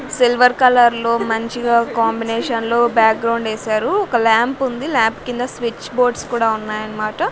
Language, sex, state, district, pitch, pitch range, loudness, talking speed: Telugu, female, Andhra Pradesh, Sri Satya Sai, 235 Hz, 225-245 Hz, -17 LUFS, 145 wpm